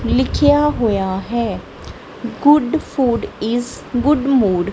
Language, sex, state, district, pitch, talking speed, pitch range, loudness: Punjabi, female, Punjab, Kapurthala, 245 Hz, 115 wpm, 215-290 Hz, -17 LUFS